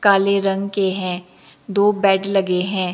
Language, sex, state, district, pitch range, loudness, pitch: Hindi, female, Himachal Pradesh, Shimla, 185-200 Hz, -19 LUFS, 195 Hz